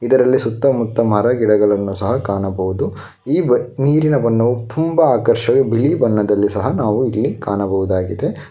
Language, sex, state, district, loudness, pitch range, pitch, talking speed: Kannada, male, Karnataka, Bangalore, -16 LUFS, 100-130 Hz, 115 Hz, 120 wpm